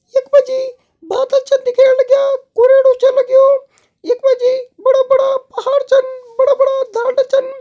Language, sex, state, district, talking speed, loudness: Hindi, male, Uttarakhand, Tehri Garhwal, 155 wpm, -13 LUFS